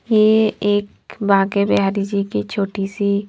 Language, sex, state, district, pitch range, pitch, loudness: Hindi, female, Punjab, Fazilka, 195-205 Hz, 200 Hz, -18 LUFS